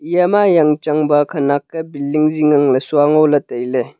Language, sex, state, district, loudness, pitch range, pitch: Wancho, male, Arunachal Pradesh, Longding, -14 LUFS, 145-155 Hz, 150 Hz